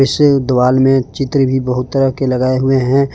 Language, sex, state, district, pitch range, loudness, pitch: Hindi, male, Jharkhand, Palamu, 130-135 Hz, -13 LUFS, 135 Hz